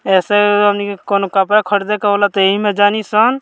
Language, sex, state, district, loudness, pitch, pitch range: Bhojpuri, male, Bihar, Muzaffarpur, -14 LUFS, 205 Hz, 200-210 Hz